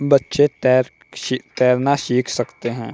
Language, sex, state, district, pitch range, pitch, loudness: Hindi, male, Uttar Pradesh, Hamirpur, 125-140 Hz, 130 Hz, -19 LUFS